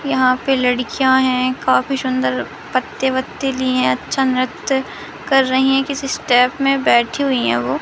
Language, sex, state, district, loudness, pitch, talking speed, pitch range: Hindi, female, Madhya Pradesh, Katni, -17 LUFS, 260 Hz, 170 wpm, 250-270 Hz